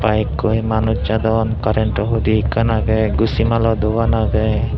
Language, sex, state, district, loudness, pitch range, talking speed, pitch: Chakma, male, Tripura, Dhalai, -17 LUFS, 110-115 Hz, 150 wpm, 110 Hz